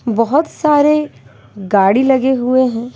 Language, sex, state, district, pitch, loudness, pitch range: Hindi, female, Bihar, West Champaran, 260 Hz, -13 LUFS, 230-290 Hz